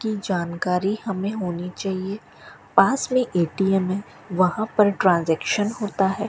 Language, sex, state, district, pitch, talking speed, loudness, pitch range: Hindi, female, Rajasthan, Bikaner, 195 Hz, 135 wpm, -22 LUFS, 185-210 Hz